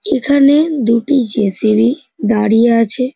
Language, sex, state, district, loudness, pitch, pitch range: Bengali, male, West Bengal, North 24 Parganas, -13 LUFS, 235 Hz, 225-280 Hz